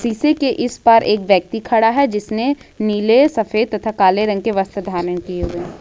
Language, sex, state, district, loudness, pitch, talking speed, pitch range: Hindi, female, Jharkhand, Ranchi, -16 LUFS, 220 Hz, 205 wpm, 200-235 Hz